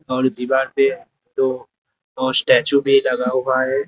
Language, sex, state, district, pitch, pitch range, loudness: Hindi, male, Uttar Pradesh, Lalitpur, 130 Hz, 130-135 Hz, -18 LUFS